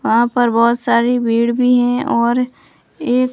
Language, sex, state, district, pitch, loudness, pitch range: Hindi, female, Rajasthan, Barmer, 245 Hz, -15 LUFS, 235-250 Hz